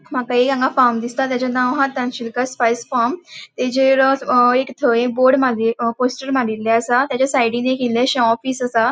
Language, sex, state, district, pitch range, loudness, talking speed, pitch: Konkani, female, Goa, North and South Goa, 240-265 Hz, -17 LUFS, 170 wpm, 250 Hz